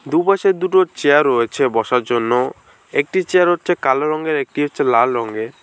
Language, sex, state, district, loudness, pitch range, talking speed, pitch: Bengali, male, West Bengal, Alipurduar, -17 LUFS, 120-175 Hz, 160 wpm, 145 Hz